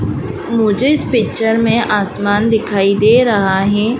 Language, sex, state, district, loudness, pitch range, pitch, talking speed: Hindi, female, Madhya Pradesh, Dhar, -14 LUFS, 205-230 Hz, 220 Hz, 135 wpm